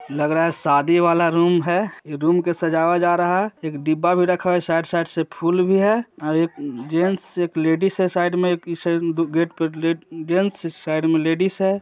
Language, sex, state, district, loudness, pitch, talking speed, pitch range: Hindi, male, Bihar, Jahanabad, -20 LUFS, 170 Hz, 220 wpm, 160-180 Hz